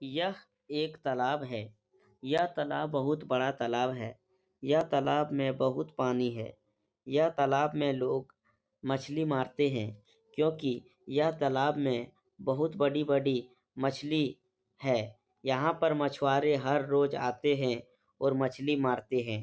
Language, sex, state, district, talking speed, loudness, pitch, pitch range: Hindi, male, Uttar Pradesh, Etah, 135 wpm, -31 LUFS, 135 Hz, 125-150 Hz